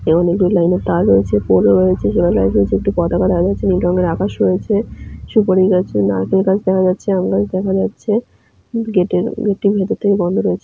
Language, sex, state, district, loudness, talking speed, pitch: Bengali, female, West Bengal, Jalpaiguri, -15 LUFS, 195 wpm, 185 Hz